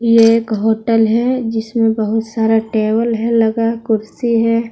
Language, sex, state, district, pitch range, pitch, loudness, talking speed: Hindi, female, Jharkhand, Deoghar, 220-230 Hz, 225 Hz, -15 LUFS, 155 wpm